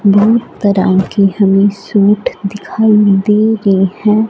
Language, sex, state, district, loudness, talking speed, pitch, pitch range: Hindi, female, Punjab, Fazilka, -11 LUFS, 125 wpm, 205 Hz, 195-210 Hz